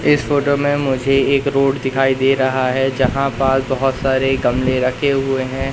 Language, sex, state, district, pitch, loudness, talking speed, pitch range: Hindi, male, Madhya Pradesh, Katni, 135 Hz, -16 LUFS, 190 wpm, 130-135 Hz